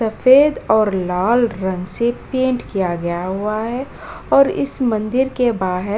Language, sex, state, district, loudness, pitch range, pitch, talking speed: Hindi, female, Bihar, Kishanganj, -17 LUFS, 190-255 Hz, 220 Hz, 160 wpm